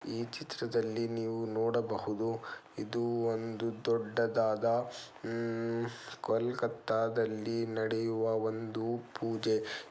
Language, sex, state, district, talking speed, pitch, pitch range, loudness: Kannada, male, Karnataka, Dakshina Kannada, 80 wpm, 115 Hz, 110-115 Hz, -34 LUFS